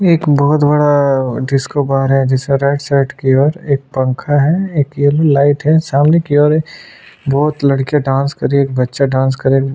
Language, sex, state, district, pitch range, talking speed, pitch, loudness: Hindi, male, Chhattisgarh, Sukma, 135-150 Hz, 195 wpm, 140 Hz, -13 LUFS